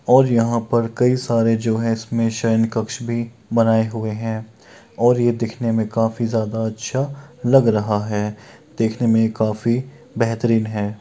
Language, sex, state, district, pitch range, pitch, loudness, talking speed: Maithili, male, Bihar, Kishanganj, 110-120 Hz, 115 Hz, -20 LUFS, 160 wpm